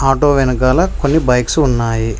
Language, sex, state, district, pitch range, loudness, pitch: Telugu, male, Telangana, Mahabubabad, 120-145 Hz, -14 LUFS, 130 Hz